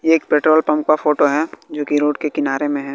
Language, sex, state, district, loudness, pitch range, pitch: Hindi, male, Bihar, West Champaran, -17 LUFS, 145-155 Hz, 150 Hz